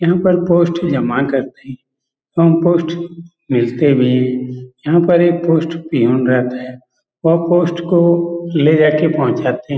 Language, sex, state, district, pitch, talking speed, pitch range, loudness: Hindi, male, Bihar, Saran, 160 Hz, 155 wpm, 130-170 Hz, -14 LUFS